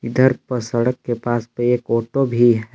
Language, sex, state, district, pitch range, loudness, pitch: Hindi, male, Jharkhand, Palamu, 120-125 Hz, -19 LUFS, 120 Hz